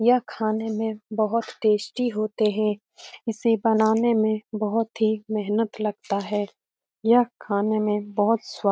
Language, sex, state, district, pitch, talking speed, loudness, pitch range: Hindi, female, Bihar, Jamui, 215 Hz, 145 wpm, -24 LUFS, 210-225 Hz